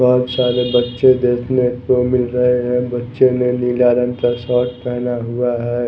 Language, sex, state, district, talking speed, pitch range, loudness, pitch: Hindi, male, Bihar, West Champaran, 175 wpm, 120-125 Hz, -16 LUFS, 125 Hz